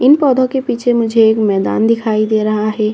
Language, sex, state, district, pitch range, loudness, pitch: Hindi, female, Chhattisgarh, Bastar, 215-245 Hz, -13 LUFS, 225 Hz